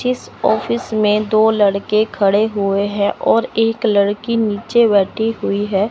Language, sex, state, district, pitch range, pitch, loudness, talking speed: Hindi, male, Chandigarh, Chandigarh, 200-225 Hz, 215 Hz, -16 LUFS, 150 wpm